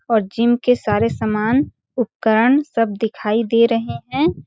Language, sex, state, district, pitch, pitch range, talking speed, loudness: Hindi, female, Chhattisgarh, Balrampur, 230 Hz, 220-240 Hz, 160 wpm, -18 LUFS